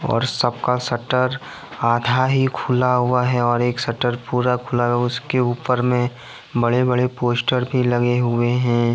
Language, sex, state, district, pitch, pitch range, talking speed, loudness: Hindi, male, Jharkhand, Ranchi, 125 Hz, 120-125 Hz, 170 wpm, -19 LUFS